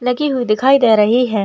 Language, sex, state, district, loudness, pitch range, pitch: Hindi, female, Maharashtra, Pune, -13 LUFS, 215-260 Hz, 245 Hz